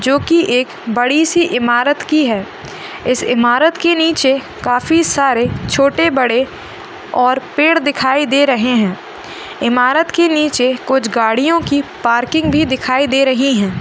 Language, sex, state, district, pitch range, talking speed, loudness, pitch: Hindi, female, Maharashtra, Nagpur, 250-320 Hz, 150 wpm, -14 LUFS, 275 Hz